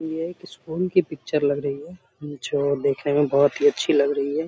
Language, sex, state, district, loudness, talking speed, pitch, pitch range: Hindi, male, Bihar, Samastipur, -22 LUFS, 225 wpm, 145 Hz, 140-165 Hz